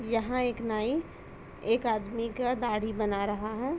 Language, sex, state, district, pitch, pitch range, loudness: Hindi, female, Uttar Pradesh, Etah, 230 Hz, 215-245 Hz, -31 LUFS